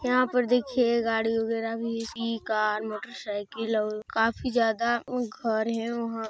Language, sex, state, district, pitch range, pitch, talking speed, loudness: Hindi, female, Chhattisgarh, Sarguja, 220-240 Hz, 230 Hz, 150 wpm, -28 LUFS